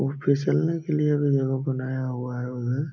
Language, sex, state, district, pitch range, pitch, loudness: Hindi, male, Bihar, Jamui, 130-145 Hz, 135 Hz, -25 LUFS